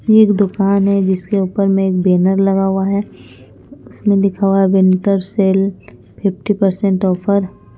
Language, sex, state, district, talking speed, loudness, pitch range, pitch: Hindi, female, Punjab, Pathankot, 160 wpm, -15 LUFS, 190-200 Hz, 195 Hz